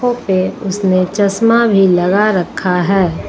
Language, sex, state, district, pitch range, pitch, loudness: Hindi, female, Uttar Pradesh, Lucknow, 185-210 Hz, 195 Hz, -13 LUFS